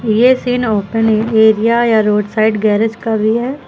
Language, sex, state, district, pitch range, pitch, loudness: Hindi, female, Uttar Pradesh, Lucknow, 215-235 Hz, 220 Hz, -13 LUFS